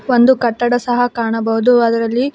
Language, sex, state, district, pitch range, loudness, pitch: Kannada, female, Karnataka, Bangalore, 230-245 Hz, -14 LUFS, 240 Hz